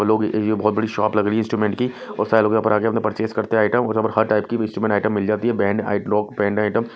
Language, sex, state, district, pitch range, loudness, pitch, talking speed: Hindi, male, Odisha, Nuapada, 105-110 Hz, -20 LUFS, 110 Hz, 320 wpm